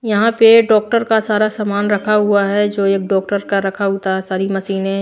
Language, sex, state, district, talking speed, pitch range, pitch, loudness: Hindi, female, Maharashtra, Washim, 215 wpm, 195-215 Hz, 205 Hz, -15 LUFS